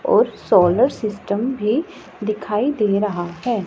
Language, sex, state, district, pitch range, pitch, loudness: Hindi, female, Punjab, Pathankot, 205-255 Hz, 215 Hz, -19 LUFS